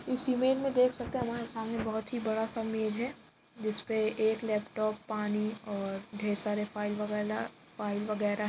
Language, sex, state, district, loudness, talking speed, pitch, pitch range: Hindi, female, Uttar Pradesh, Jalaun, -33 LUFS, 190 wpm, 215 Hz, 210-230 Hz